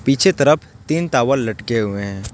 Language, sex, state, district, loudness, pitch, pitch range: Hindi, male, West Bengal, Alipurduar, -18 LUFS, 120 Hz, 110-145 Hz